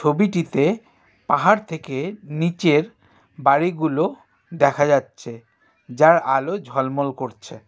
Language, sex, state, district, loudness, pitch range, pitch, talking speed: Bengali, male, West Bengal, Darjeeling, -20 LUFS, 130-165 Hz, 145 Hz, 95 wpm